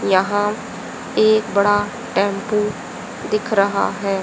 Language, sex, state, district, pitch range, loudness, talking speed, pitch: Hindi, female, Haryana, Charkhi Dadri, 200-215 Hz, -19 LUFS, 100 wpm, 205 Hz